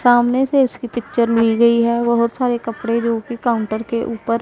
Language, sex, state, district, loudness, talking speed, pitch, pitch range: Hindi, female, Punjab, Pathankot, -17 LUFS, 190 wpm, 235 Hz, 230-240 Hz